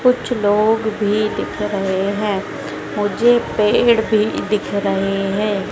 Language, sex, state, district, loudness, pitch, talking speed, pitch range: Hindi, female, Madhya Pradesh, Dhar, -18 LUFS, 210 Hz, 125 wpm, 200-220 Hz